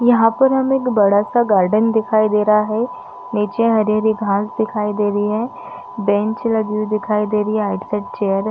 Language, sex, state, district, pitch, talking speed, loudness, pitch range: Hindi, female, Chhattisgarh, Bastar, 215 Hz, 210 wpm, -17 LUFS, 210-225 Hz